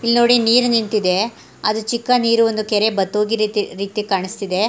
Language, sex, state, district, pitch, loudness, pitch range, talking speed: Kannada, female, Karnataka, Mysore, 215 Hz, -17 LUFS, 205-230 Hz, 180 wpm